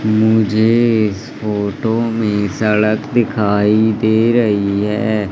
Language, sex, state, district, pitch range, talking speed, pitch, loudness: Hindi, male, Madhya Pradesh, Katni, 105-110 Hz, 100 wpm, 110 Hz, -15 LUFS